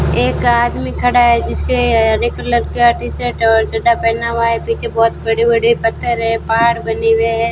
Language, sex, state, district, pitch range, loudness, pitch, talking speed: Hindi, female, Rajasthan, Bikaner, 225-235 Hz, -14 LUFS, 230 Hz, 200 wpm